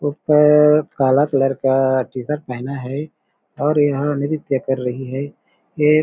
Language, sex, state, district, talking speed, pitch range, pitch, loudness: Hindi, male, Chhattisgarh, Balrampur, 150 wpm, 130-150 Hz, 140 Hz, -18 LUFS